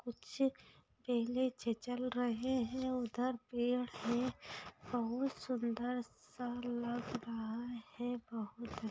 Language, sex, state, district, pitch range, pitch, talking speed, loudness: Hindi, female, Bihar, Saran, 235-250 Hz, 245 Hz, 115 wpm, -40 LUFS